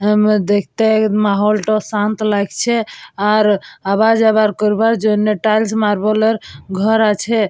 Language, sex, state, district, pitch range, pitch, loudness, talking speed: Bengali, female, West Bengal, Purulia, 210-220 Hz, 215 Hz, -15 LUFS, 120 wpm